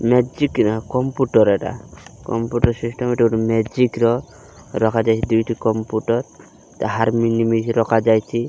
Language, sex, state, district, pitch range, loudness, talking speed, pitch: Odia, male, Odisha, Malkangiri, 110-120 Hz, -19 LUFS, 90 wpm, 115 Hz